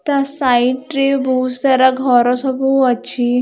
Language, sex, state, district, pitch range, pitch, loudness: Odia, female, Odisha, Khordha, 250-270 Hz, 260 Hz, -15 LUFS